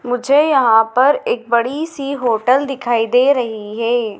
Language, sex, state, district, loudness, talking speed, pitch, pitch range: Hindi, female, Madhya Pradesh, Dhar, -15 LUFS, 155 wpm, 245 Hz, 230-275 Hz